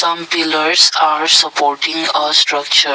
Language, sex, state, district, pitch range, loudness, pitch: English, male, Assam, Kamrup Metropolitan, 145-165 Hz, -12 LUFS, 155 Hz